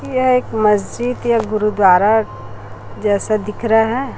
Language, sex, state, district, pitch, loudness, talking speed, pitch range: Hindi, female, Chhattisgarh, Raipur, 215 Hz, -16 LUFS, 130 wpm, 200-230 Hz